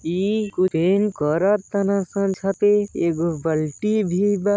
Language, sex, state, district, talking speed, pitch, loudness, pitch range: Bhojpuri, male, Uttar Pradesh, Deoria, 120 wpm, 195 Hz, -21 LUFS, 170-205 Hz